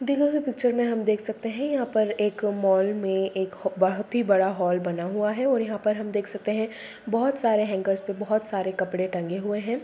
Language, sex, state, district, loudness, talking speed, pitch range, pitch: Hindi, female, Bihar, Darbhanga, -25 LUFS, 230 wpm, 195-230 Hz, 210 Hz